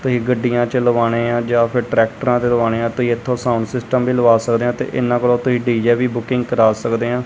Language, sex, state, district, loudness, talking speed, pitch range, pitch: Punjabi, male, Punjab, Kapurthala, -17 LUFS, 205 wpm, 115-125 Hz, 120 Hz